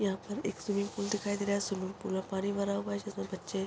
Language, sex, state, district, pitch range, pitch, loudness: Hindi, female, Chhattisgarh, Korba, 195-205 Hz, 200 Hz, -35 LUFS